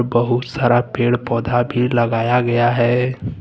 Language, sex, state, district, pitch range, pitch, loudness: Hindi, male, Jharkhand, Deoghar, 120-125 Hz, 120 Hz, -17 LUFS